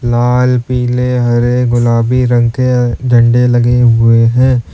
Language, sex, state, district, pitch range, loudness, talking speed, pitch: Hindi, male, Uttar Pradesh, Lalitpur, 120-125 Hz, -10 LUFS, 140 wpm, 120 Hz